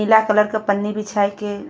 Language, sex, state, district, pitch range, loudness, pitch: Bhojpuri, female, Uttar Pradesh, Gorakhpur, 205-215 Hz, -19 LUFS, 210 Hz